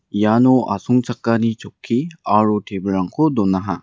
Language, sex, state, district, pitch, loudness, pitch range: Garo, male, Meghalaya, West Garo Hills, 105 Hz, -18 LUFS, 100-120 Hz